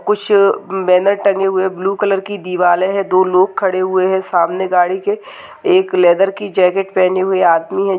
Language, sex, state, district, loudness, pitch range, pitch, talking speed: Hindi, female, Uttarakhand, Tehri Garhwal, -14 LUFS, 185-200 Hz, 190 Hz, 190 wpm